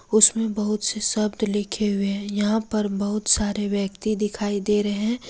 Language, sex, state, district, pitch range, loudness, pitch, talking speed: Hindi, female, Jharkhand, Ranchi, 205-215 Hz, -22 LUFS, 210 Hz, 180 wpm